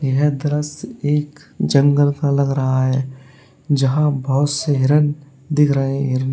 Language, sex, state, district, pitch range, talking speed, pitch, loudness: Hindi, male, Uttar Pradesh, Lalitpur, 135-150 Hz, 140 wpm, 140 Hz, -18 LUFS